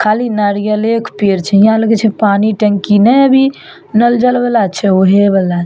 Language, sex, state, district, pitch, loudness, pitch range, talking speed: Maithili, female, Bihar, Samastipur, 215 Hz, -11 LUFS, 200-230 Hz, 200 wpm